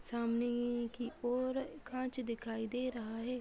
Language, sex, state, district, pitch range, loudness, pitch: Hindi, female, Chhattisgarh, Sarguja, 235-255 Hz, -39 LUFS, 240 Hz